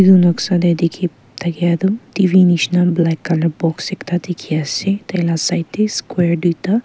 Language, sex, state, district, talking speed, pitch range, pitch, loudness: Nagamese, female, Nagaland, Kohima, 175 wpm, 170-185 Hz, 175 Hz, -16 LUFS